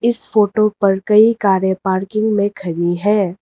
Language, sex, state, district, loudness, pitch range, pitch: Hindi, female, Arunachal Pradesh, Lower Dibang Valley, -15 LUFS, 190-215 Hz, 200 Hz